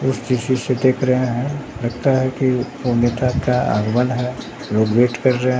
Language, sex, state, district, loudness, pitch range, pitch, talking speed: Hindi, male, Bihar, Katihar, -19 LUFS, 120-130 Hz, 125 Hz, 170 wpm